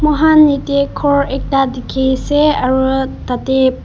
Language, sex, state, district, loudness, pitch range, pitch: Nagamese, female, Nagaland, Kohima, -14 LUFS, 265-290 Hz, 270 Hz